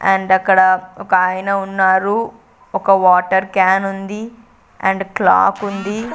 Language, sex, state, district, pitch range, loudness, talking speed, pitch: Telugu, female, Andhra Pradesh, Sri Satya Sai, 190-200 Hz, -15 LUFS, 115 wpm, 195 Hz